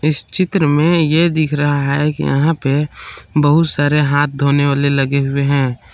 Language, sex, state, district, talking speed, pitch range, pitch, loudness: Hindi, male, Jharkhand, Palamu, 180 wpm, 140-155 Hz, 145 Hz, -15 LUFS